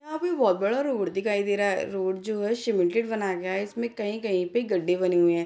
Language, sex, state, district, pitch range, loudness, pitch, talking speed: Hindi, female, Bihar, Purnia, 185-230 Hz, -26 LUFS, 205 Hz, 240 wpm